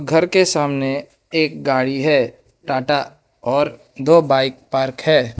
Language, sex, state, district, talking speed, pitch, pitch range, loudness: Hindi, male, Arunachal Pradesh, Lower Dibang Valley, 135 wpm, 140 Hz, 135-155 Hz, -18 LUFS